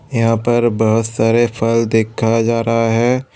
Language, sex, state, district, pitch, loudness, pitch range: Hindi, male, Tripura, West Tripura, 115 Hz, -15 LUFS, 115-120 Hz